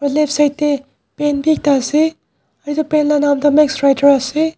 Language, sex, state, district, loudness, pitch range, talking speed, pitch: Nagamese, male, Nagaland, Dimapur, -15 LUFS, 285-300 Hz, 195 wpm, 295 Hz